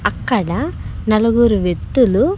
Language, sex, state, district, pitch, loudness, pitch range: Telugu, male, Andhra Pradesh, Sri Satya Sai, 225 Hz, -16 LUFS, 210-240 Hz